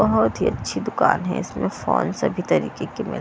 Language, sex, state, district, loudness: Hindi, female, Punjab, Kapurthala, -22 LUFS